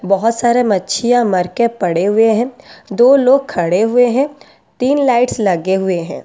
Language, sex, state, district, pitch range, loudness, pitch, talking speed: Hindi, female, Delhi, New Delhi, 190-250 Hz, -14 LUFS, 230 Hz, 175 wpm